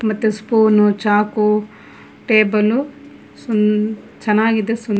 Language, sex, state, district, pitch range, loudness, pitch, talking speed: Kannada, female, Karnataka, Bangalore, 210-225 Hz, -16 LUFS, 215 Hz, 70 wpm